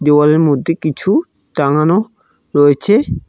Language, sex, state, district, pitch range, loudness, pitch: Bengali, male, West Bengal, Cooch Behar, 145-195 Hz, -13 LUFS, 155 Hz